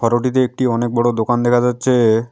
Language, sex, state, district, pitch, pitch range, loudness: Bengali, male, West Bengal, Alipurduar, 120 Hz, 120-125 Hz, -16 LUFS